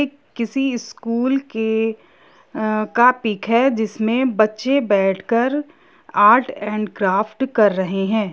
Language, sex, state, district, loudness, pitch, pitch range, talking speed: Hindi, female, Jharkhand, Jamtara, -19 LUFS, 225 Hz, 215-265 Hz, 110 wpm